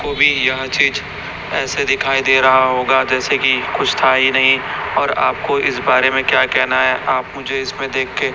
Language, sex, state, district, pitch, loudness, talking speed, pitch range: Hindi, male, Chhattisgarh, Raipur, 135 Hz, -15 LUFS, 195 wpm, 130-135 Hz